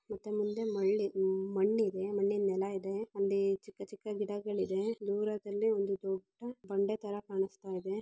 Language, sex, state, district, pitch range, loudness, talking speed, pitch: Kannada, female, Karnataka, Raichur, 195-210 Hz, -35 LUFS, 125 wpm, 200 Hz